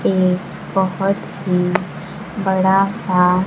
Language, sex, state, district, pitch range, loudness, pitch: Hindi, female, Bihar, Kaimur, 180-195 Hz, -18 LUFS, 185 Hz